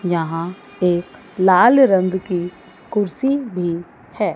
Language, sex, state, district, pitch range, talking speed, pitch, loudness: Hindi, female, Chandigarh, Chandigarh, 170-205 Hz, 110 wpm, 180 Hz, -18 LUFS